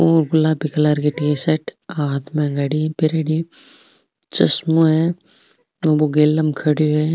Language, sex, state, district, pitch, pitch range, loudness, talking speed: Marwari, female, Rajasthan, Nagaur, 155 Hz, 150-160 Hz, -18 LUFS, 135 wpm